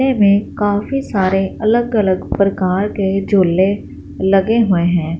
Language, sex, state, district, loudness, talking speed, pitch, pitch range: Hindi, female, Punjab, Fazilka, -15 LUFS, 140 wpm, 200 Hz, 190-210 Hz